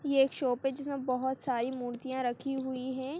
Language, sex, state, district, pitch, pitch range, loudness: Hindi, female, Chhattisgarh, Kabirdham, 260 Hz, 255-270 Hz, -33 LUFS